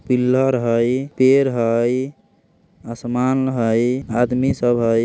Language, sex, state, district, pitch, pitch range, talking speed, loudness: Bajjika, male, Bihar, Vaishali, 125 Hz, 115-130 Hz, 105 wpm, -18 LUFS